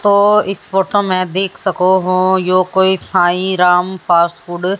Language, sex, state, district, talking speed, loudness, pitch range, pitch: Hindi, female, Haryana, Jhajjar, 160 wpm, -13 LUFS, 180-195 Hz, 185 Hz